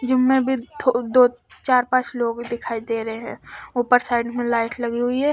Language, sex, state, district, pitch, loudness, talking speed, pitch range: Hindi, female, Haryana, Charkhi Dadri, 245 Hz, -21 LUFS, 225 wpm, 235-255 Hz